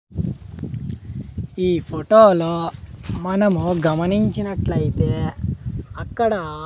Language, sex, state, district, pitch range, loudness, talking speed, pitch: Telugu, male, Andhra Pradesh, Sri Satya Sai, 165-205 Hz, -20 LUFS, 65 wpm, 180 Hz